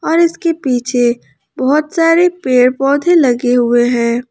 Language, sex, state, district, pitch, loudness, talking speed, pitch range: Hindi, female, Jharkhand, Ranchi, 260 Hz, -13 LUFS, 140 wpm, 245-330 Hz